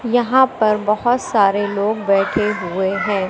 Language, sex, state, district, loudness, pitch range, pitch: Hindi, female, Madhya Pradesh, Katni, -17 LUFS, 195-230 Hz, 210 Hz